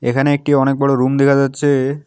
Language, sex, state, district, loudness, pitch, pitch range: Bengali, male, West Bengal, Alipurduar, -15 LUFS, 140 Hz, 135-140 Hz